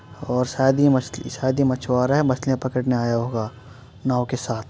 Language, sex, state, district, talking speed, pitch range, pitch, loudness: Hindi, male, Uttar Pradesh, Muzaffarnagar, 190 wpm, 120-130 Hz, 125 Hz, -22 LUFS